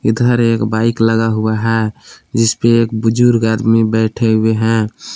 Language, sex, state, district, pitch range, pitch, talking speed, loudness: Hindi, male, Jharkhand, Palamu, 110-115 Hz, 115 Hz, 160 wpm, -14 LUFS